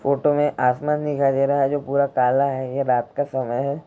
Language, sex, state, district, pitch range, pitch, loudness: Hindi, male, Bihar, Jahanabad, 130-145 Hz, 140 Hz, -21 LUFS